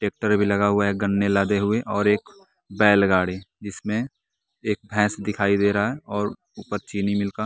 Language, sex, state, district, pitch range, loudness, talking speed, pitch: Hindi, male, Bihar, West Champaran, 100-105 Hz, -22 LUFS, 195 wpm, 105 Hz